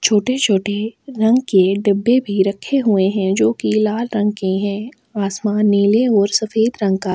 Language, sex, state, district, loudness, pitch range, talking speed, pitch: Hindi, female, Chhattisgarh, Sukma, -17 LUFS, 200-225 Hz, 185 wpm, 210 Hz